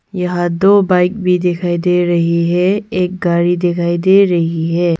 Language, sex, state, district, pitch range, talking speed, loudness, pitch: Hindi, female, Arunachal Pradesh, Longding, 175-185 Hz, 170 wpm, -14 LUFS, 175 Hz